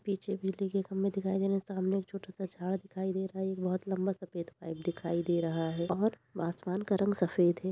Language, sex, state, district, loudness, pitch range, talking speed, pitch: Hindi, female, Uttar Pradesh, Budaun, -34 LUFS, 175-195 Hz, 255 wpm, 190 Hz